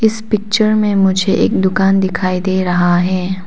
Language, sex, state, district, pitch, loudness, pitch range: Hindi, female, Arunachal Pradesh, Papum Pare, 190 Hz, -14 LUFS, 185-210 Hz